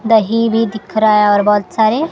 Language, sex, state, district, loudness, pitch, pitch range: Hindi, female, Maharashtra, Mumbai Suburban, -13 LUFS, 220 Hz, 210-225 Hz